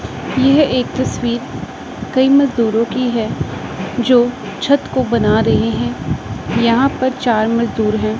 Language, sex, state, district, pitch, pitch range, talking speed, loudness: Hindi, female, Punjab, Pathankot, 235 Hz, 220-260 Hz, 130 wpm, -16 LUFS